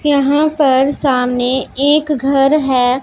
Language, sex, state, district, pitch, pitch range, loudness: Hindi, female, Punjab, Pathankot, 275 Hz, 260-290 Hz, -13 LUFS